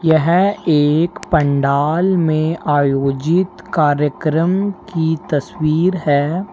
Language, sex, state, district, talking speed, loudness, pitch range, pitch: Hindi, male, Uttar Pradesh, Lalitpur, 85 wpm, -16 LUFS, 145-175 Hz, 160 Hz